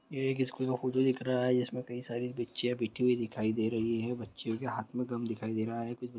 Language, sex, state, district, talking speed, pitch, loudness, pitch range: Hindi, male, Bihar, Kishanganj, 270 wpm, 120 Hz, -33 LUFS, 115-125 Hz